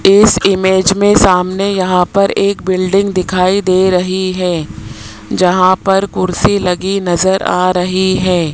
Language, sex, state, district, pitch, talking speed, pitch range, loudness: Hindi, male, Rajasthan, Jaipur, 185 Hz, 140 wpm, 180-195 Hz, -12 LUFS